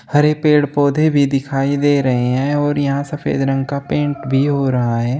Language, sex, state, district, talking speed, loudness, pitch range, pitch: Hindi, male, Uttar Pradesh, Shamli, 205 wpm, -16 LUFS, 135-145 Hz, 140 Hz